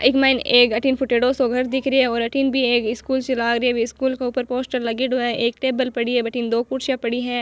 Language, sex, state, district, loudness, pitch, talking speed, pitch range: Marwari, female, Rajasthan, Nagaur, -20 LUFS, 250 Hz, 265 wpm, 235-260 Hz